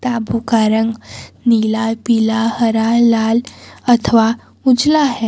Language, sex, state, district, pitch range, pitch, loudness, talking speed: Hindi, female, Jharkhand, Garhwa, 225-240 Hz, 230 Hz, -15 LUFS, 125 wpm